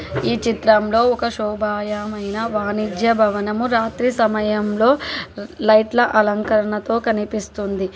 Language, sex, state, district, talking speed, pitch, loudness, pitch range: Telugu, female, Telangana, Hyderabad, 85 wpm, 215 Hz, -19 LUFS, 210-230 Hz